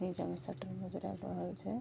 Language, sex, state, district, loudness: Maithili, female, Bihar, Vaishali, -42 LUFS